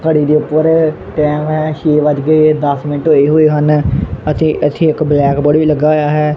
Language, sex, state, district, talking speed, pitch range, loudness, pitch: Punjabi, male, Punjab, Kapurthala, 190 wpm, 150-155 Hz, -12 LUFS, 150 Hz